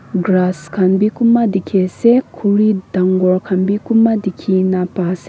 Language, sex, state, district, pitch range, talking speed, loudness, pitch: Nagamese, female, Nagaland, Kohima, 185-210 Hz, 145 wpm, -15 LUFS, 190 Hz